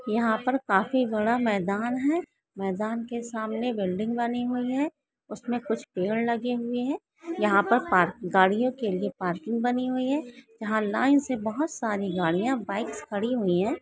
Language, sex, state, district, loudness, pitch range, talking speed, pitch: Hindi, female, Maharashtra, Solapur, -27 LUFS, 205-255 Hz, 170 wpm, 230 Hz